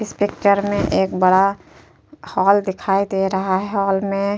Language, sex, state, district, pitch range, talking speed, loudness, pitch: Hindi, female, Uttar Pradesh, Jyotiba Phule Nagar, 190-200 Hz, 180 wpm, -18 LUFS, 195 Hz